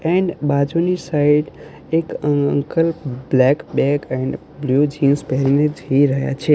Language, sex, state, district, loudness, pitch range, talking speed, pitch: Gujarati, male, Gujarat, Gandhinagar, -18 LUFS, 140-155 Hz, 130 wpm, 145 Hz